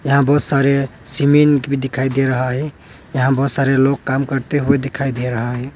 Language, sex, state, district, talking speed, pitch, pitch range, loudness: Hindi, male, Arunachal Pradesh, Longding, 210 wpm, 135 Hz, 130-140 Hz, -17 LUFS